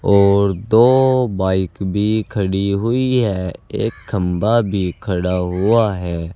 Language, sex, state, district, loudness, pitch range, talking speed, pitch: Hindi, male, Uttar Pradesh, Saharanpur, -17 LUFS, 90-115 Hz, 125 wpm, 100 Hz